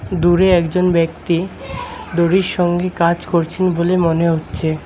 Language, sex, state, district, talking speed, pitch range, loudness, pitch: Bengali, male, West Bengal, Alipurduar, 125 wpm, 170-180 Hz, -16 LUFS, 175 Hz